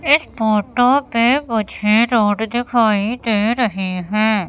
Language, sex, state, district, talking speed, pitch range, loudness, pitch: Hindi, female, Madhya Pradesh, Katni, 120 wpm, 210-240 Hz, -17 LUFS, 225 Hz